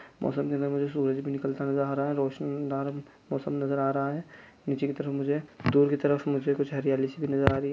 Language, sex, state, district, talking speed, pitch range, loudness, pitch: Hindi, male, Chhattisgarh, Bastar, 255 wpm, 140-145 Hz, -29 LUFS, 140 Hz